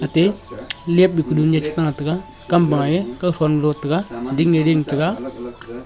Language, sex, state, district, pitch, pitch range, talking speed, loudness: Wancho, male, Arunachal Pradesh, Longding, 155 Hz, 145-170 Hz, 125 wpm, -19 LUFS